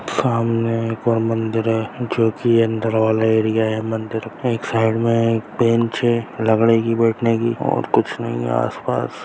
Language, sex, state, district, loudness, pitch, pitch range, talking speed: Hindi, male, Bihar, Bhagalpur, -19 LUFS, 115 Hz, 110-115 Hz, 175 wpm